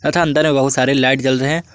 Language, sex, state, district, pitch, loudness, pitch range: Hindi, male, Jharkhand, Garhwa, 135 Hz, -15 LUFS, 130-155 Hz